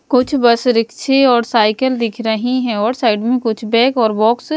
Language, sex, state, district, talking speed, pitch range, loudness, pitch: Hindi, female, Bihar, West Champaran, 210 wpm, 225-255 Hz, -15 LUFS, 235 Hz